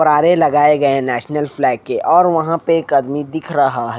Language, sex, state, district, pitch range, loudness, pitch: Hindi, male, Haryana, Rohtak, 140-160 Hz, -15 LUFS, 150 Hz